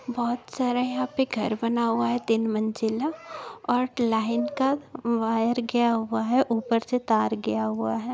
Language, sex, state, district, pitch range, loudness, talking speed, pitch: Hindi, female, Maharashtra, Nagpur, 225-250 Hz, -26 LUFS, 170 wpm, 235 Hz